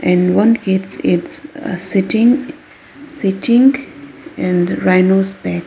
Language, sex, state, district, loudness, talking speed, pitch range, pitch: English, female, Arunachal Pradesh, Lower Dibang Valley, -15 LUFS, 115 wpm, 185-285 Hz, 215 Hz